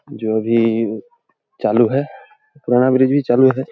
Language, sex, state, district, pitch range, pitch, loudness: Hindi, male, Jharkhand, Jamtara, 115-160 Hz, 130 Hz, -16 LUFS